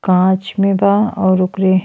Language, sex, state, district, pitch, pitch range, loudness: Bhojpuri, female, Uttar Pradesh, Ghazipur, 190 Hz, 185-195 Hz, -14 LUFS